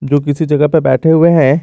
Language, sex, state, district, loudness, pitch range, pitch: Hindi, male, Jharkhand, Garhwa, -11 LUFS, 145-160 Hz, 150 Hz